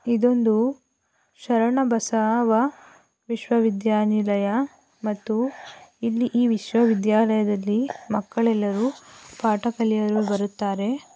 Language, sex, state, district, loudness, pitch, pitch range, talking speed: Kannada, female, Karnataka, Gulbarga, -23 LUFS, 225 Hz, 215-240 Hz, 70 wpm